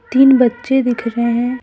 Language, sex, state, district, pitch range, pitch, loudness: Hindi, female, Jharkhand, Deoghar, 235-260 Hz, 245 Hz, -14 LUFS